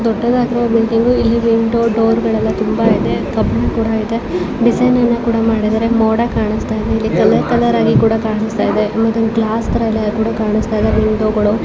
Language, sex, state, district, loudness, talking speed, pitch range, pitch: Kannada, female, Karnataka, Bijapur, -14 LUFS, 195 wpm, 215-230 Hz, 225 Hz